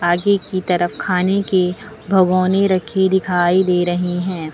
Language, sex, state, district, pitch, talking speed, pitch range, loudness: Hindi, female, Uttar Pradesh, Lucknow, 185 Hz, 145 wpm, 175-190 Hz, -17 LUFS